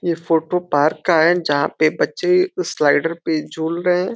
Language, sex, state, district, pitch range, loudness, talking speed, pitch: Hindi, male, Uttar Pradesh, Deoria, 155-180 Hz, -18 LUFS, 185 wpm, 165 Hz